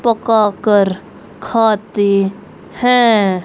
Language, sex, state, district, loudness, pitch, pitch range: Hindi, female, Haryana, Rohtak, -14 LUFS, 210 Hz, 200-225 Hz